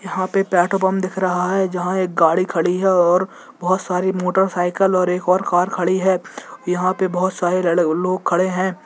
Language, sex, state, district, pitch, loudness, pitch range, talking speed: Hindi, male, Jharkhand, Jamtara, 185 Hz, -18 LUFS, 180-190 Hz, 205 wpm